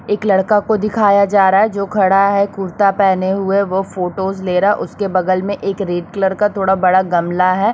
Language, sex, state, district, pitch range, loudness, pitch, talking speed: Hindi, female, Chhattisgarh, Raipur, 190-200 Hz, -15 LUFS, 195 Hz, 215 wpm